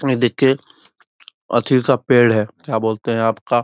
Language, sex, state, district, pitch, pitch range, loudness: Magahi, male, Bihar, Gaya, 120 Hz, 115-130 Hz, -17 LUFS